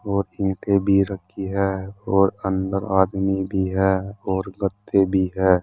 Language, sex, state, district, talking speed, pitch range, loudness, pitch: Hindi, male, Uttar Pradesh, Saharanpur, 150 wpm, 95-100 Hz, -22 LUFS, 95 Hz